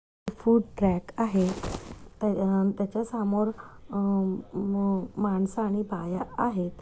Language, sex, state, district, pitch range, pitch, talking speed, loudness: Marathi, female, Maharashtra, Nagpur, 195-215 Hz, 200 Hz, 90 wpm, -28 LUFS